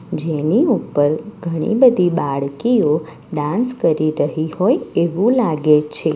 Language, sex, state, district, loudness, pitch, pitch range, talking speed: Gujarati, female, Gujarat, Valsad, -17 LUFS, 160 Hz, 150-225 Hz, 115 wpm